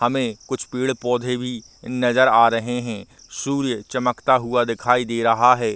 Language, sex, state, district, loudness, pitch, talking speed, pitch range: Hindi, male, Bihar, Vaishali, -20 LUFS, 125 Hz, 155 wpm, 115-125 Hz